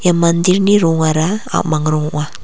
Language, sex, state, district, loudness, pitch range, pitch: Garo, female, Meghalaya, West Garo Hills, -14 LUFS, 155-185 Hz, 165 Hz